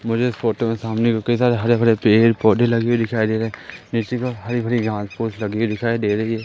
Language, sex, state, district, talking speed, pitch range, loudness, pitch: Hindi, male, Madhya Pradesh, Katni, 250 wpm, 110-120 Hz, -19 LUFS, 115 Hz